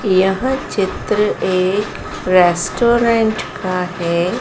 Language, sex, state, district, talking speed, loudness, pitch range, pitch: Hindi, female, Madhya Pradesh, Dhar, 80 wpm, -16 LUFS, 180-215 Hz, 190 Hz